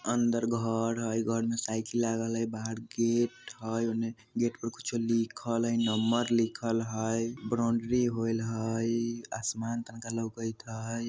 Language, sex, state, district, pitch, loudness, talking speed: Bajjika, male, Bihar, Vaishali, 115 Hz, -31 LUFS, 150 wpm